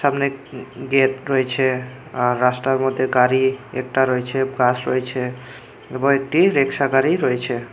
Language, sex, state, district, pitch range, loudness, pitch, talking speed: Bengali, male, Tripura, Unakoti, 125-135 Hz, -19 LUFS, 130 Hz, 125 wpm